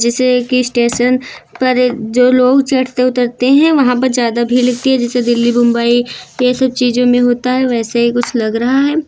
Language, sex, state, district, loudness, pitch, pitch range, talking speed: Hindi, female, Uttar Pradesh, Lucknow, -12 LUFS, 250 Hz, 240-255 Hz, 205 wpm